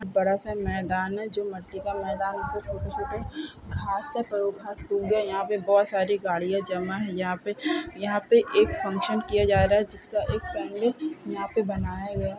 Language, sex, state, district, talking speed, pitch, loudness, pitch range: Hindi, female, Chhattisgarh, Bilaspur, 205 wpm, 200 Hz, -27 LUFS, 195-215 Hz